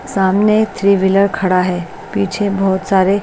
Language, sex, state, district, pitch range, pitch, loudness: Hindi, female, Bihar, West Champaran, 190-200 Hz, 195 Hz, -15 LUFS